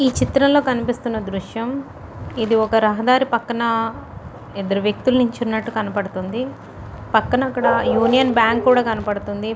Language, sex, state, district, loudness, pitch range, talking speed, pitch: Telugu, female, Andhra Pradesh, Chittoor, -19 LUFS, 220-250 Hz, 105 wpm, 230 Hz